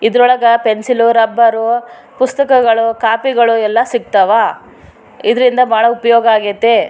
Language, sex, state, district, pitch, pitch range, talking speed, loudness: Kannada, female, Karnataka, Raichur, 235 Hz, 225-245 Hz, 95 wpm, -12 LUFS